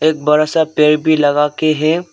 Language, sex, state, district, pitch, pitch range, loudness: Hindi, male, Arunachal Pradesh, Longding, 155 Hz, 150-155 Hz, -13 LUFS